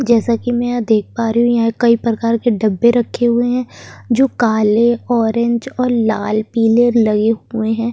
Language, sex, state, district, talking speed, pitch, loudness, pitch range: Hindi, female, Uttar Pradesh, Jyotiba Phule Nagar, 190 wpm, 235 Hz, -15 LUFS, 225-240 Hz